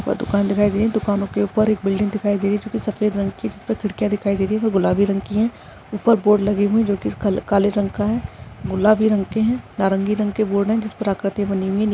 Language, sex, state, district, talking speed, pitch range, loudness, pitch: Hindi, female, Maharashtra, Chandrapur, 280 wpm, 200-215 Hz, -20 LUFS, 205 Hz